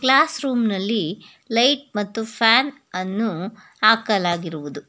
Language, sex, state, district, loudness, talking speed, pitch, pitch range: Kannada, female, Karnataka, Bangalore, -20 LUFS, 85 wpm, 220 Hz, 190-260 Hz